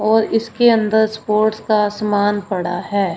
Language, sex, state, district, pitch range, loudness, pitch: Hindi, female, Punjab, Fazilka, 205-220 Hz, -17 LUFS, 215 Hz